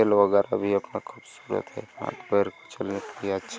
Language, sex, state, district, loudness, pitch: Hindi, male, Chhattisgarh, Sarguja, -27 LUFS, 100 Hz